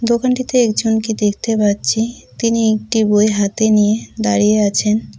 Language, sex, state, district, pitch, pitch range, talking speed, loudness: Bengali, female, West Bengal, Cooch Behar, 220 Hz, 210-230 Hz, 125 wpm, -15 LUFS